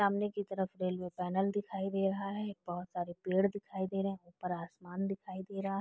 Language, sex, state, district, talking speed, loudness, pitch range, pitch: Hindi, female, Uttar Pradesh, Deoria, 225 wpm, -37 LUFS, 180-195 Hz, 195 Hz